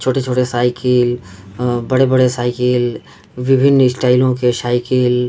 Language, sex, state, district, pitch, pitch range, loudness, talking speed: Hindi, male, Bihar, Darbhanga, 125 Hz, 120-130 Hz, -15 LUFS, 125 wpm